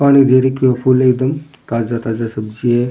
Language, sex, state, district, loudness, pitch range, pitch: Rajasthani, male, Rajasthan, Churu, -15 LUFS, 115-130 Hz, 130 Hz